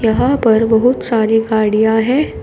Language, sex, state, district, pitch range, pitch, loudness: Hindi, female, Uttar Pradesh, Shamli, 220-245 Hz, 225 Hz, -13 LUFS